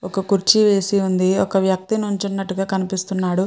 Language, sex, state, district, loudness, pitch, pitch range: Telugu, female, Andhra Pradesh, Chittoor, -19 LUFS, 195 Hz, 190-200 Hz